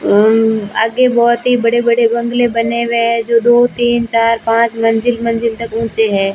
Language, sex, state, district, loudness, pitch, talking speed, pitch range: Hindi, female, Rajasthan, Bikaner, -13 LUFS, 230 Hz, 180 wpm, 225-235 Hz